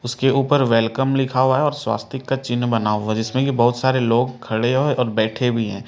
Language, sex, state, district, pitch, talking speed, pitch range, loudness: Hindi, male, Delhi, New Delhi, 120 Hz, 235 wpm, 115-135 Hz, -19 LUFS